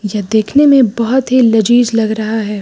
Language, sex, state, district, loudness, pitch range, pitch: Hindi, female, Uttar Pradesh, Lucknow, -11 LUFS, 215-250 Hz, 225 Hz